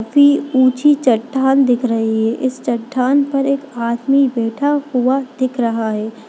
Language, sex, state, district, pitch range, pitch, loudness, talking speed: Hindi, female, Bihar, Darbhanga, 235-275 Hz, 255 Hz, -16 LUFS, 150 wpm